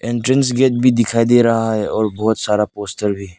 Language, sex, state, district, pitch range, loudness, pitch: Hindi, male, Arunachal Pradesh, Lower Dibang Valley, 105-120 Hz, -16 LUFS, 115 Hz